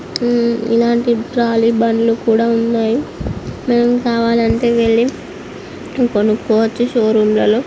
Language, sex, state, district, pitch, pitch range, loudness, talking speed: Telugu, female, Andhra Pradesh, Srikakulam, 230 Hz, 225-240 Hz, -15 LUFS, 100 wpm